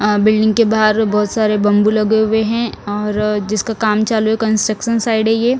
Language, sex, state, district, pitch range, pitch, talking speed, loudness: Hindi, female, Punjab, Fazilka, 210-220 Hz, 215 Hz, 205 wpm, -15 LUFS